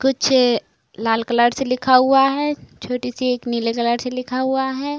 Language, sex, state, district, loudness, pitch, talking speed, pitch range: Hindi, female, Uttar Pradesh, Budaun, -19 LUFS, 255 Hz, 190 wpm, 240-265 Hz